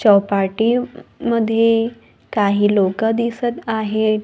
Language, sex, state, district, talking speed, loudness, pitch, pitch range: Marathi, female, Maharashtra, Gondia, 85 wpm, -18 LUFS, 225 Hz, 205-230 Hz